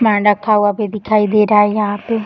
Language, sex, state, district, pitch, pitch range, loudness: Hindi, female, Bihar, Darbhanga, 210 Hz, 205-215 Hz, -14 LUFS